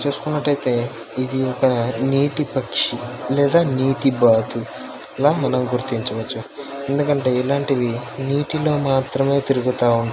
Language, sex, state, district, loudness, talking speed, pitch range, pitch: Telugu, male, Andhra Pradesh, Srikakulam, -20 LUFS, 100 wpm, 120-140 Hz, 135 Hz